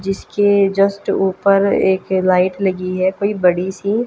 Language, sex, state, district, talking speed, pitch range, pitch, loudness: Hindi, female, Haryana, Jhajjar, 145 wpm, 185-200 Hz, 195 Hz, -16 LUFS